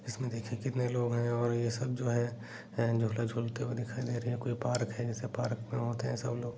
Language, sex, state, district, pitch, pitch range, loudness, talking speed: Hindi, male, Bihar, Jahanabad, 120 Hz, 115-125 Hz, -34 LUFS, 245 wpm